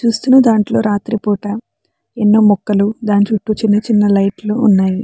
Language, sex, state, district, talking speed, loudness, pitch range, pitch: Telugu, female, Andhra Pradesh, Chittoor, 130 wpm, -13 LUFS, 205-220 Hz, 210 Hz